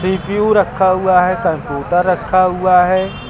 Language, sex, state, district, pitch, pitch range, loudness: Hindi, male, Uttar Pradesh, Lucknow, 185 Hz, 180-190 Hz, -14 LUFS